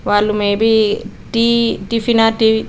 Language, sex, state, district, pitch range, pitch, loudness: Telugu, female, Telangana, Karimnagar, 210-230 Hz, 225 Hz, -15 LUFS